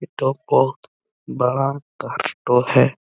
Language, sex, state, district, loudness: Hindi, male, Chhattisgarh, Bastar, -20 LUFS